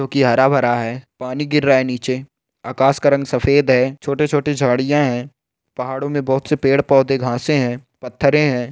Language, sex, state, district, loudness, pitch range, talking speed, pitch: Hindi, male, Rajasthan, Churu, -17 LUFS, 125-140 Hz, 200 wpm, 135 Hz